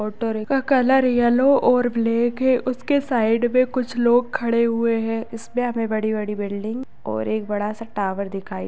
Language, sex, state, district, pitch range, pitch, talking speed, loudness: Hindi, female, Maharashtra, Sindhudurg, 215-250 Hz, 230 Hz, 175 wpm, -21 LUFS